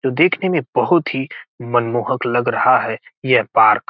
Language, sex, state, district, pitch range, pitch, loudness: Hindi, male, Bihar, Gopalganj, 120-170 Hz, 130 Hz, -17 LUFS